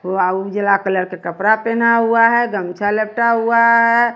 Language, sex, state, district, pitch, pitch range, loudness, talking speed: Hindi, female, Bihar, West Champaran, 220 Hz, 190-230 Hz, -15 LUFS, 175 wpm